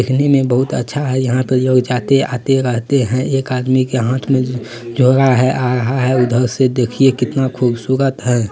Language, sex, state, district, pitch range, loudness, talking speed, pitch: Hindi, male, Bihar, Gopalganj, 125-135 Hz, -15 LUFS, 195 wpm, 130 Hz